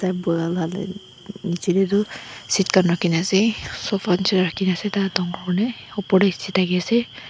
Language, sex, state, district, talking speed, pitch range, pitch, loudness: Nagamese, female, Nagaland, Dimapur, 150 wpm, 180-200 Hz, 190 Hz, -21 LUFS